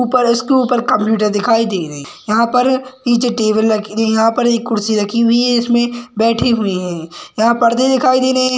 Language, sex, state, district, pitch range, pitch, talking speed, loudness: Hindi, male, Chhattisgarh, Sarguja, 215-245 Hz, 235 Hz, 215 wpm, -14 LUFS